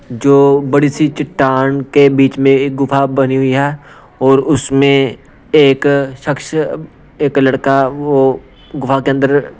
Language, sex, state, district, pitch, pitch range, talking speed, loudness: Hindi, male, Punjab, Pathankot, 140 Hz, 135-145 Hz, 145 wpm, -12 LUFS